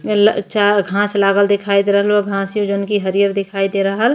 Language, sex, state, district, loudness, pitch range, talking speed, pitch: Bhojpuri, female, Uttar Pradesh, Ghazipur, -16 LUFS, 200-205 Hz, 245 wpm, 200 Hz